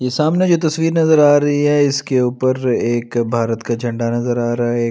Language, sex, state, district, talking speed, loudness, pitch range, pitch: Hindi, male, Delhi, New Delhi, 220 wpm, -16 LUFS, 120-145 Hz, 125 Hz